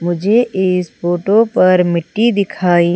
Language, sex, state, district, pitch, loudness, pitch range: Hindi, female, Madhya Pradesh, Umaria, 185 Hz, -14 LUFS, 175-210 Hz